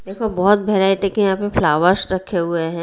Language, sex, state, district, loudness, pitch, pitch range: Hindi, female, Bihar, Patna, -17 LUFS, 195 Hz, 180-205 Hz